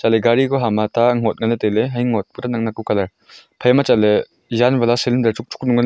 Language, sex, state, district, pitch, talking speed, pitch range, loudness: Wancho, male, Arunachal Pradesh, Longding, 120 Hz, 225 wpm, 110-125 Hz, -18 LUFS